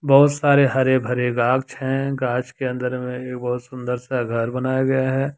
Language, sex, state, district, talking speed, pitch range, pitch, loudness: Hindi, male, Jharkhand, Deoghar, 200 wpm, 125-135 Hz, 130 Hz, -21 LUFS